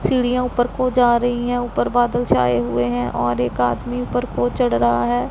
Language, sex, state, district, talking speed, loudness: Hindi, female, Punjab, Pathankot, 215 wpm, -19 LUFS